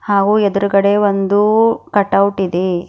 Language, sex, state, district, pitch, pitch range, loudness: Kannada, female, Karnataka, Bidar, 200 Hz, 195-205 Hz, -14 LUFS